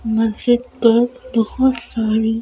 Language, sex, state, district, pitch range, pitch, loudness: Hindi, female, Madhya Pradesh, Bhopal, 225-245 Hz, 230 Hz, -17 LUFS